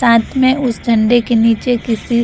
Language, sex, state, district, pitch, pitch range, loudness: Hindi, female, Bihar, Vaishali, 235 Hz, 230-245 Hz, -14 LUFS